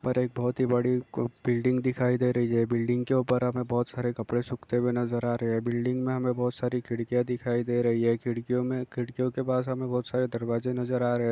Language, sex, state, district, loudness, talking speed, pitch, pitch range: Hindi, male, Chhattisgarh, Balrampur, -28 LUFS, 245 wpm, 125 Hz, 120-125 Hz